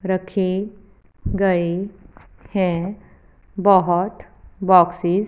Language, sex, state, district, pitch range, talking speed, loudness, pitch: Hindi, female, Punjab, Fazilka, 180-195 Hz, 70 wpm, -19 LUFS, 190 Hz